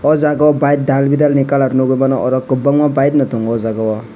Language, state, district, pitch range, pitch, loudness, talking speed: Kokborok, Tripura, West Tripura, 130-145 Hz, 135 Hz, -14 LUFS, 190 wpm